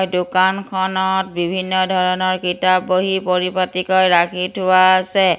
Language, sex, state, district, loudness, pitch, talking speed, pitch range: Assamese, female, Assam, Kamrup Metropolitan, -17 LUFS, 185 Hz, 100 wpm, 185-190 Hz